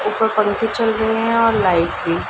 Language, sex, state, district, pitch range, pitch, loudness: Hindi, female, Uttar Pradesh, Ghazipur, 205-225 Hz, 220 Hz, -17 LUFS